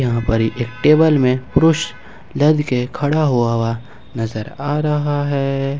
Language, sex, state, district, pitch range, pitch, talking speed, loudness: Hindi, male, Jharkhand, Ranchi, 120-150 Hz, 135 Hz, 155 wpm, -17 LUFS